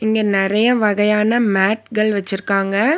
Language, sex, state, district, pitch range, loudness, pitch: Tamil, female, Tamil Nadu, Nilgiris, 195-220 Hz, -17 LUFS, 210 Hz